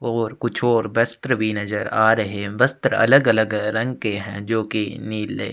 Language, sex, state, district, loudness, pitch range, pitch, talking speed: Hindi, male, Chhattisgarh, Sukma, -20 LUFS, 105-120 Hz, 110 Hz, 215 wpm